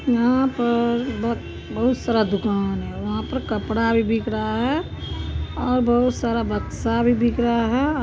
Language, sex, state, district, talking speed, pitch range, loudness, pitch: Maithili, female, Bihar, Supaul, 180 wpm, 220-245 Hz, -22 LUFS, 235 Hz